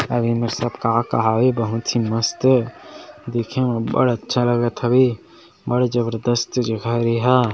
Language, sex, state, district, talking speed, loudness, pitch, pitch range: Chhattisgarhi, male, Chhattisgarh, Sarguja, 160 wpm, -20 LUFS, 120 Hz, 115-125 Hz